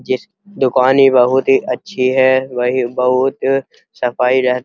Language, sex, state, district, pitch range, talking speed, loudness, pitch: Hindi, male, Uttar Pradesh, Muzaffarnagar, 125-135 Hz, 155 wpm, -14 LUFS, 130 Hz